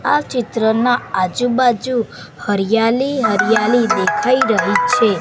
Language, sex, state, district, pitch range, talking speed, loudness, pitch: Gujarati, female, Gujarat, Gandhinagar, 210-250 Hz, 105 wpm, -16 LUFS, 235 Hz